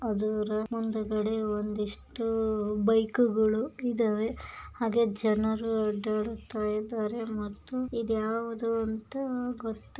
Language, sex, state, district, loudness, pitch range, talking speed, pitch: Kannada, female, Karnataka, Bijapur, -30 LUFS, 215-230 Hz, 70 wpm, 220 Hz